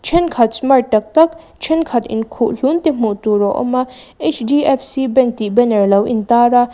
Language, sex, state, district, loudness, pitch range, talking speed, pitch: Mizo, female, Mizoram, Aizawl, -15 LUFS, 220-275 Hz, 215 wpm, 245 Hz